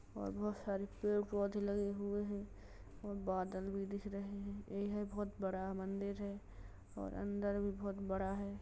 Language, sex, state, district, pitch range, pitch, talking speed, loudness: Hindi, female, Uttar Pradesh, Jalaun, 190-205 Hz, 200 Hz, 180 wpm, -42 LUFS